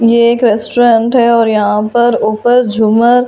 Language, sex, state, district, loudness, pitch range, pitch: Hindi, female, Delhi, New Delhi, -10 LUFS, 220-240 Hz, 235 Hz